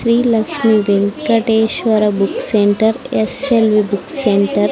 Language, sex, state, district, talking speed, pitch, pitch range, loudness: Telugu, female, Andhra Pradesh, Sri Satya Sai, 115 wpm, 220 Hz, 205-225 Hz, -14 LUFS